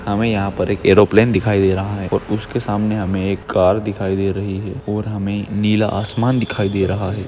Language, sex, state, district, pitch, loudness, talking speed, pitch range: Hindi, male, Maharashtra, Nagpur, 100 Hz, -18 LUFS, 220 wpm, 95-105 Hz